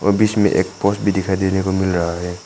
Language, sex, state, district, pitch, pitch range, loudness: Hindi, male, Arunachal Pradesh, Papum Pare, 95 Hz, 90-100 Hz, -18 LUFS